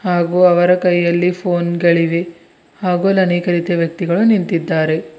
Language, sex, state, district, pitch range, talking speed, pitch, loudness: Kannada, male, Karnataka, Bidar, 170-180 Hz, 125 wpm, 175 Hz, -15 LUFS